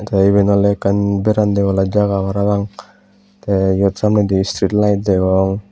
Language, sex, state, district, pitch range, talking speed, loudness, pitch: Chakma, male, Tripura, West Tripura, 95-100 Hz, 145 wpm, -15 LUFS, 100 Hz